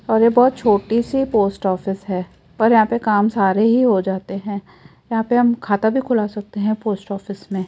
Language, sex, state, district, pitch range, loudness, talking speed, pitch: Hindi, female, Rajasthan, Jaipur, 195-230 Hz, -18 LUFS, 220 wpm, 210 Hz